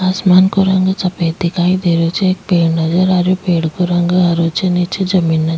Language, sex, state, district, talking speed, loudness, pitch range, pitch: Rajasthani, female, Rajasthan, Nagaur, 235 wpm, -14 LUFS, 170-185 Hz, 180 Hz